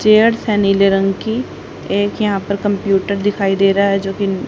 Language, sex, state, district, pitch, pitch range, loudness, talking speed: Hindi, female, Haryana, Rohtak, 200 Hz, 195-205 Hz, -15 LUFS, 200 wpm